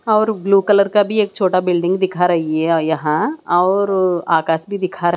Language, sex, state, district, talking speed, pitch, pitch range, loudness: Hindi, female, Haryana, Charkhi Dadri, 185 wpm, 185 Hz, 170-200 Hz, -16 LUFS